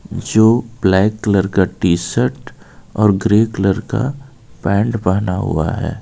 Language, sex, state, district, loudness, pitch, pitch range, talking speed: Hindi, male, Jharkhand, Ranchi, -16 LUFS, 105 Hz, 95-115 Hz, 130 wpm